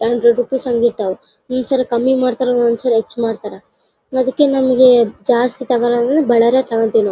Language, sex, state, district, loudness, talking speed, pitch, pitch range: Kannada, female, Karnataka, Bellary, -15 LUFS, 150 wpm, 245 Hz, 235-255 Hz